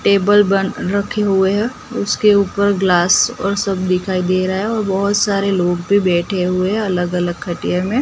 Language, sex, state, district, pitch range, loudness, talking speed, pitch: Hindi, female, Gujarat, Gandhinagar, 185-200 Hz, -16 LUFS, 195 wpm, 195 Hz